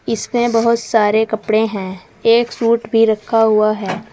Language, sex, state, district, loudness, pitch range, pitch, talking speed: Hindi, female, Uttar Pradesh, Saharanpur, -15 LUFS, 215-230 Hz, 220 Hz, 160 wpm